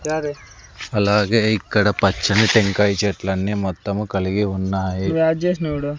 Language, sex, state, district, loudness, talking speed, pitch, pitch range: Telugu, male, Andhra Pradesh, Sri Satya Sai, -19 LUFS, 80 wpm, 105 Hz, 95-115 Hz